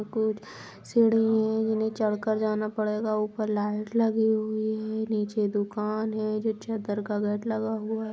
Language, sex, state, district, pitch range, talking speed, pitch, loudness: Angika, female, Bihar, Supaul, 210-220 Hz, 160 wpm, 215 Hz, -27 LUFS